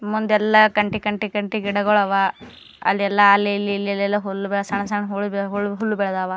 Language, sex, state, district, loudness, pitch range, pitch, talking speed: Kannada, female, Karnataka, Gulbarga, -20 LUFS, 200-210 Hz, 205 Hz, 140 wpm